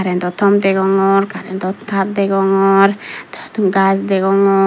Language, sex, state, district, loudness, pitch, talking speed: Chakma, female, Tripura, Dhalai, -14 LUFS, 195 Hz, 105 wpm